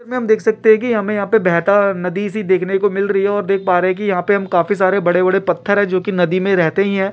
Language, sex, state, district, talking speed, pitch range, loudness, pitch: Hindi, male, Uttarakhand, Uttarkashi, 335 wpm, 185-205 Hz, -15 LUFS, 195 Hz